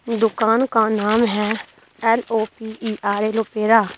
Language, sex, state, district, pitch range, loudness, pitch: Hindi, female, Delhi, New Delhi, 215-225 Hz, -20 LUFS, 220 Hz